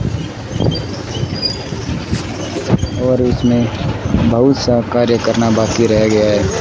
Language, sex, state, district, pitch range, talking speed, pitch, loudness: Hindi, male, Rajasthan, Bikaner, 105-125 Hz, 90 wpm, 115 Hz, -15 LUFS